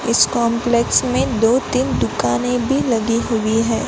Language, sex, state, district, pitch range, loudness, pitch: Hindi, female, Gujarat, Gandhinagar, 225-245 Hz, -17 LUFS, 230 Hz